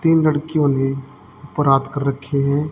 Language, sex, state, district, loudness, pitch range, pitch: Hindi, female, Haryana, Charkhi Dadri, -19 LUFS, 135-150 Hz, 140 Hz